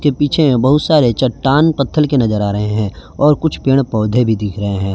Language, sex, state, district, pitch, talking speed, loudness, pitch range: Hindi, male, Jharkhand, Garhwa, 130 Hz, 215 wpm, -14 LUFS, 105-145 Hz